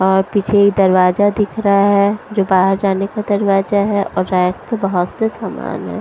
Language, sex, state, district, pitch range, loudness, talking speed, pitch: Hindi, female, Punjab, Pathankot, 190-205 Hz, -15 LUFS, 200 wpm, 200 Hz